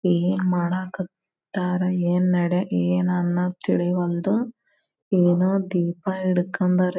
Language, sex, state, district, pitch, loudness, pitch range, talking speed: Kannada, female, Karnataka, Belgaum, 180 Hz, -23 LUFS, 175-185 Hz, 85 wpm